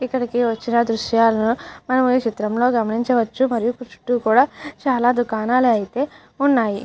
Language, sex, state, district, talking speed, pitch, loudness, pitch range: Telugu, female, Andhra Pradesh, Chittoor, 130 wpm, 240 Hz, -19 LUFS, 225-255 Hz